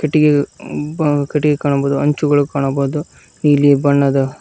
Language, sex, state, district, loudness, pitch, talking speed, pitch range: Kannada, male, Karnataka, Koppal, -15 LUFS, 145 Hz, 110 wpm, 140-150 Hz